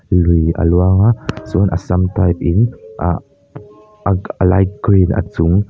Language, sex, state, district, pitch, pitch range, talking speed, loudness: Mizo, male, Mizoram, Aizawl, 95 Hz, 90-105 Hz, 160 wpm, -15 LUFS